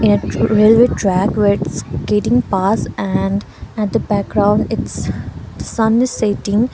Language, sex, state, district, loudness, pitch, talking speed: English, female, Sikkim, Gangtok, -16 LUFS, 205 Hz, 145 wpm